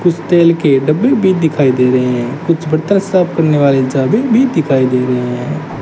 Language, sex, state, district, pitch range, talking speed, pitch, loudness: Hindi, male, Rajasthan, Bikaner, 130-175 Hz, 195 wpm, 155 Hz, -12 LUFS